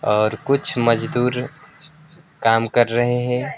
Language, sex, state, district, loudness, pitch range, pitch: Hindi, male, West Bengal, Alipurduar, -19 LUFS, 115-145 Hz, 125 Hz